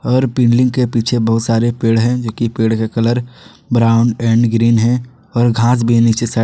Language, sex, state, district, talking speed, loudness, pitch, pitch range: Hindi, male, Jharkhand, Ranchi, 215 wpm, -14 LUFS, 115 Hz, 115-120 Hz